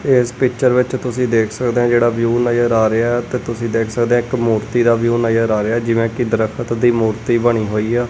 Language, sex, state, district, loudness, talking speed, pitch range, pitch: Punjabi, male, Punjab, Kapurthala, -16 LUFS, 230 wpm, 115-120 Hz, 120 Hz